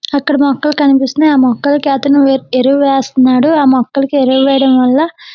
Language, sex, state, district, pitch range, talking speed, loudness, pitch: Telugu, female, Andhra Pradesh, Srikakulam, 265-285 Hz, 180 wpm, -11 LUFS, 275 Hz